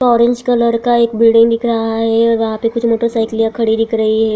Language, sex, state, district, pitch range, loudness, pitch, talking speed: Hindi, female, Bihar, Purnia, 225-235 Hz, -13 LUFS, 230 Hz, 245 wpm